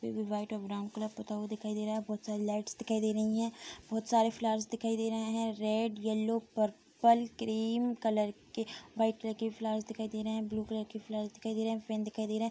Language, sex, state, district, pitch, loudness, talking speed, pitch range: Hindi, female, Bihar, Bhagalpur, 220 Hz, -35 LUFS, 250 wpm, 215-225 Hz